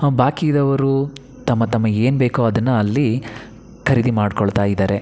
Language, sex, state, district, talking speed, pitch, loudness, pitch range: Kannada, male, Karnataka, Belgaum, 145 wpm, 120 Hz, -18 LUFS, 110-135 Hz